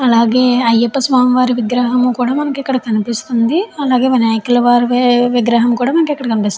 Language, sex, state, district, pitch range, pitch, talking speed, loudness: Telugu, female, Andhra Pradesh, Chittoor, 235-255 Hz, 245 Hz, 155 wpm, -13 LUFS